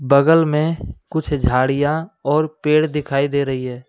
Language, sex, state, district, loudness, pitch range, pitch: Hindi, male, Jharkhand, Deoghar, -18 LUFS, 135-155 Hz, 145 Hz